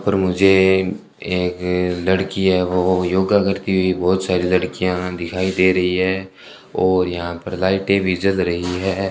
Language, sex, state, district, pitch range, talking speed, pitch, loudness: Hindi, male, Rajasthan, Bikaner, 90-95 Hz, 160 wpm, 95 Hz, -18 LUFS